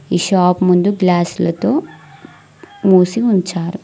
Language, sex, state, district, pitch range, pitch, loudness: Telugu, female, Telangana, Mahabubabad, 175-190 Hz, 180 Hz, -14 LUFS